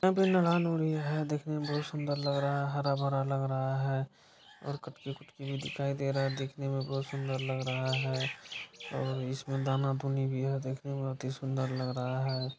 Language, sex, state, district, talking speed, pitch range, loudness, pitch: Maithili, male, Bihar, Supaul, 210 wpm, 135-140 Hz, -33 LUFS, 135 Hz